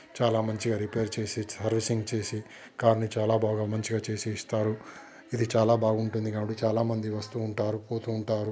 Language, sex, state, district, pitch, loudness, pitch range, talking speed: Telugu, male, Telangana, Nalgonda, 110 Hz, -29 LUFS, 110-115 Hz, 155 wpm